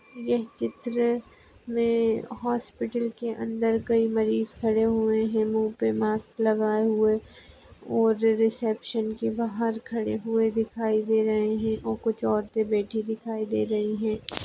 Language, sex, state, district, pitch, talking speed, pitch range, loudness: Hindi, female, Maharashtra, Aurangabad, 225 Hz, 140 wpm, 220-230 Hz, -26 LUFS